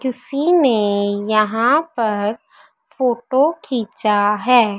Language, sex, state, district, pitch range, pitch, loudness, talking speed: Hindi, female, Madhya Pradesh, Dhar, 210-265 Hz, 235 Hz, -17 LUFS, 90 wpm